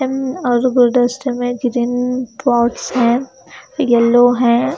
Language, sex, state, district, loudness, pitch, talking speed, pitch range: Hindi, female, Haryana, Charkhi Dadri, -15 LUFS, 245 Hz, 100 wpm, 240-255 Hz